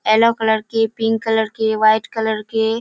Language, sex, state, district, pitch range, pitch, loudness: Hindi, female, Bihar, Kishanganj, 220-225 Hz, 220 Hz, -17 LUFS